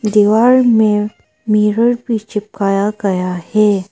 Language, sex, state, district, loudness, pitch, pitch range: Hindi, female, Arunachal Pradesh, Papum Pare, -14 LUFS, 210 Hz, 205-225 Hz